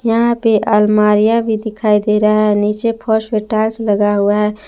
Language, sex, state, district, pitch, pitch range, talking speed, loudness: Hindi, female, Jharkhand, Palamu, 215 Hz, 210-225 Hz, 195 wpm, -14 LUFS